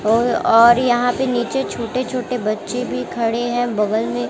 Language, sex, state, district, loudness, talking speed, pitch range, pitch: Hindi, female, Bihar, West Champaran, -18 LUFS, 180 wpm, 225-245 Hz, 235 Hz